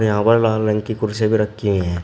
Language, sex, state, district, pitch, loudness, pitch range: Hindi, male, Uttar Pradesh, Shamli, 110 Hz, -18 LUFS, 105-110 Hz